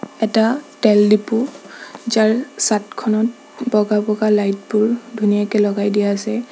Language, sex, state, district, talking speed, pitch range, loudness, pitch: Assamese, female, Assam, Sonitpur, 110 wpm, 210-235 Hz, -17 LUFS, 215 Hz